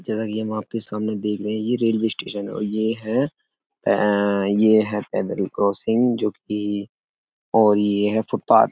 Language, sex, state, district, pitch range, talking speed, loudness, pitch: Hindi, male, Uttar Pradesh, Etah, 105-110 Hz, 180 wpm, -22 LUFS, 105 Hz